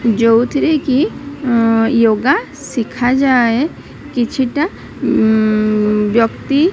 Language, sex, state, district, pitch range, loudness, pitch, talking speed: Odia, female, Odisha, Sambalpur, 225-280 Hz, -14 LUFS, 240 Hz, 80 wpm